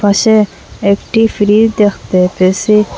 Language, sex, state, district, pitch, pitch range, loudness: Bengali, female, Assam, Hailakandi, 205 Hz, 200-215 Hz, -11 LUFS